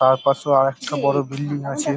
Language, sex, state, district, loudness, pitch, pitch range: Bengali, male, West Bengal, Paschim Medinipur, -20 LUFS, 140 Hz, 135-145 Hz